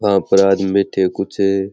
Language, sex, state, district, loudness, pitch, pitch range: Rajasthani, male, Rajasthan, Churu, -16 LUFS, 95 Hz, 95-100 Hz